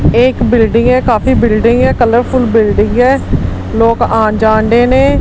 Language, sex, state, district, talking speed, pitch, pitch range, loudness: Punjabi, female, Punjab, Kapurthala, 150 wpm, 235 Hz, 220-245 Hz, -10 LUFS